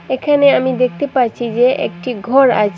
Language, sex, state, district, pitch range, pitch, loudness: Bengali, female, Assam, Hailakandi, 240-270 Hz, 255 Hz, -14 LUFS